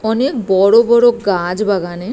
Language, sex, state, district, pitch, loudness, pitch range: Bengali, female, West Bengal, Purulia, 215 Hz, -13 LUFS, 190-235 Hz